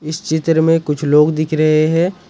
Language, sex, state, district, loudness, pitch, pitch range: Hindi, male, Jharkhand, Ranchi, -15 LUFS, 155 Hz, 155-165 Hz